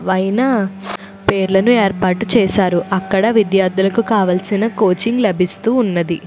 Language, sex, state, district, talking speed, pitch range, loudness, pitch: Telugu, female, Andhra Pradesh, Anantapur, 95 wpm, 190-225 Hz, -15 LUFS, 195 Hz